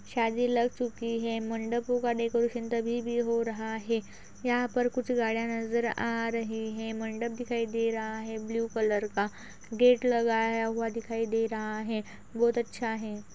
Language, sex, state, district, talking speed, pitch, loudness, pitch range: Hindi, female, Uttar Pradesh, Budaun, 170 wpm, 230 Hz, -30 LUFS, 225-235 Hz